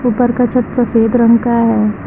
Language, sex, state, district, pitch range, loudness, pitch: Hindi, female, Uttar Pradesh, Lucknow, 230-245 Hz, -12 LUFS, 235 Hz